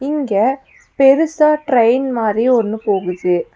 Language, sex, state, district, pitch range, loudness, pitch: Tamil, female, Tamil Nadu, Nilgiris, 205-275 Hz, -15 LUFS, 240 Hz